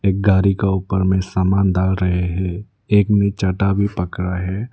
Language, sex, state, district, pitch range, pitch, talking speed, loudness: Hindi, male, Arunachal Pradesh, Lower Dibang Valley, 95-100 Hz, 95 Hz, 190 wpm, -18 LUFS